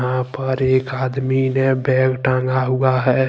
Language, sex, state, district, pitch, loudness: Hindi, male, Jharkhand, Ranchi, 130 Hz, -18 LUFS